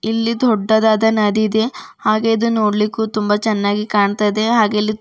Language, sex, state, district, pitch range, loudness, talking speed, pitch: Kannada, female, Karnataka, Bidar, 210-225 Hz, -16 LUFS, 165 wpm, 215 Hz